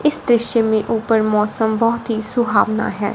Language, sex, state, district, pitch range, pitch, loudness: Hindi, male, Punjab, Fazilka, 215-230 Hz, 225 Hz, -17 LUFS